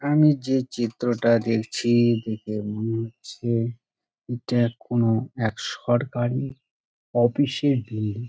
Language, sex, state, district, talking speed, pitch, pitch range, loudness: Bengali, male, West Bengal, Dakshin Dinajpur, 100 wpm, 120 Hz, 115-125 Hz, -24 LUFS